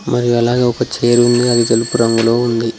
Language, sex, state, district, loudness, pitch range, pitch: Telugu, male, Telangana, Mahabubabad, -13 LUFS, 115-120 Hz, 120 Hz